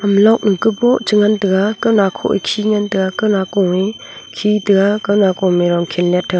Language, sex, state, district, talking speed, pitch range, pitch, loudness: Wancho, female, Arunachal Pradesh, Longding, 245 wpm, 190-210 Hz, 200 Hz, -15 LUFS